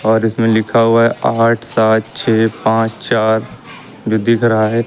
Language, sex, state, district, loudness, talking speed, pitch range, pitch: Hindi, male, Uttar Pradesh, Lucknow, -14 LUFS, 170 wpm, 110-115 Hz, 110 Hz